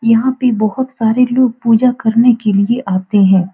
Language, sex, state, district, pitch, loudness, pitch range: Hindi, female, Bihar, Supaul, 230 Hz, -13 LUFS, 210-250 Hz